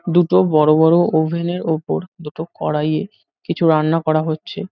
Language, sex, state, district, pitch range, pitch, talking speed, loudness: Bengali, male, West Bengal, North 24 Parganas, 155-175 Hz, 165 Hz, 165 wpm, -17 LUFS